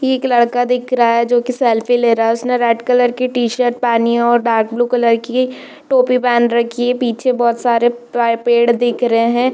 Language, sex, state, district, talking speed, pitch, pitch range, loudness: Hindi, female, Jharkhand, Jamtara, 225 wpm, 240 Hz, 235-250 Hz, -14 LUFS